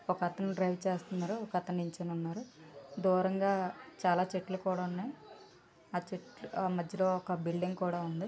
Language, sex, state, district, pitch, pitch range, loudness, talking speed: Telugu, female, Andhra Pradesh, Visakhapatnam, 185 Hz, 175-190 Hz, -35 LUFS, 140 wpm